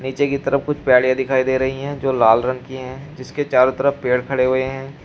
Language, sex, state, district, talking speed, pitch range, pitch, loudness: Hindi, male, Uttar Pradesh, Shamli, 240 wpm, 130-140 Hz, 130 Hz, -18 LUFS